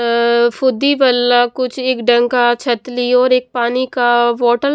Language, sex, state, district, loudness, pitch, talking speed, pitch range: Hindi, female, Haryana, Jhajjar, -14 LUFS, 245 Hz, 165 wpm, 240-255 Hz